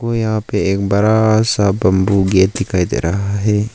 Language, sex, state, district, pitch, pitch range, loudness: Hindi, male, Arunachal Pradesh, Lower Dibang Valley, 100 Hz, 95-110 Hz, -15 LUFS